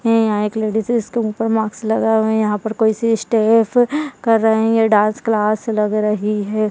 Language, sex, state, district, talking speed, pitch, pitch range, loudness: Hindi, female, Uttarakhand, Tehri Garhwal, 230 wpm, 220 Hz, 215-225 Hz, -17 LUFS